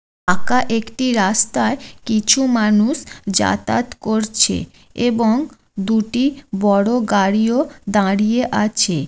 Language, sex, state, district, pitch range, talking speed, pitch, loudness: Bengali, female, West Bengal, Jalpaiguri, 205-245 Hz, 90 wpm, 220 Hz, -17 LUFS